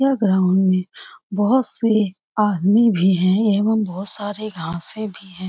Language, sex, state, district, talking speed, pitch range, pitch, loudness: Hindi, female, Bihar, Lakhisarai, 155 wpm, 185-215 Hz, 205 Hz, -19 LUFS